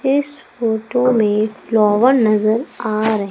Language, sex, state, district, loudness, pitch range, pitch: Hindi, female, Madhya Pradesh, Umaria, -16 LUFS, 215-250 Hz, 220 Hz